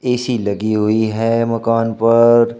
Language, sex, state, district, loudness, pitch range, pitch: Hindi, male, Uttar Pradesh, Shamli, -15 LUFS, 110-115 Hz, 115 Hz